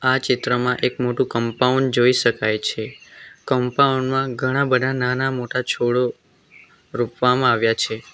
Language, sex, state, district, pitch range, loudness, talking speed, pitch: Gujarati, male, Gujarat, Valsad, 120-130 Hz, -20 LUFS, 130 wpm, 125 Hz